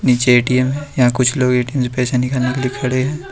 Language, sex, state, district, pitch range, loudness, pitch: Hindi, male, Jharkhand, Deoghar, 125-130 Hz, -16 LUFS, 125 Hz